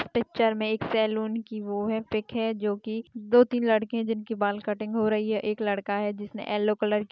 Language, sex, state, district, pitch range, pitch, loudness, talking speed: Hindi, female, Chhattisgarh, Bastar, 210-225 Hz, 215 Hz, -27 LUFS, 255 wpm